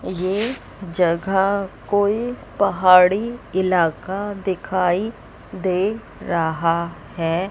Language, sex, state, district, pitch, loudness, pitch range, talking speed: Hindi, female, Chandigarh, Chandigarh, 190 Hz, -20 LUFS, 175-200 Hz, 70 wpm